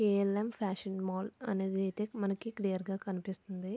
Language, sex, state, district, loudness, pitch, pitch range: Telugu, female, Andhra Pradesh, Visakhapatnam, -36 LUFS, 195 Hz, 190-210 Hz